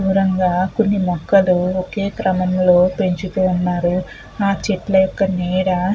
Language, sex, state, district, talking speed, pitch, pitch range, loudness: Telugu, female, Andhra Pradesh, Chittoor, 130 wpm, 185 Hz, 180-195 Hz, -17 LUFS